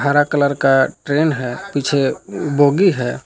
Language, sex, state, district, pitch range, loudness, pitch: Hindi, male, Jharkhand, Palamu, 135-145 Hz, -17 LUFS, 145 Hz